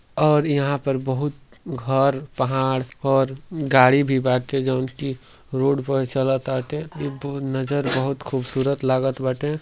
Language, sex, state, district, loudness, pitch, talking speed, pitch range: Bhojpuri, male, Uttar Pradesh, Deoria, -22 LUFS, 135 Hz, 130 wpm, 130-140 Hz